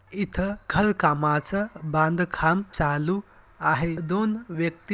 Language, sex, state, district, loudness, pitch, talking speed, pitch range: Marathi, male, Maharashtra, Dhule, -25 LUFS, 180 Hz, 95 wpm, 160-200 Hz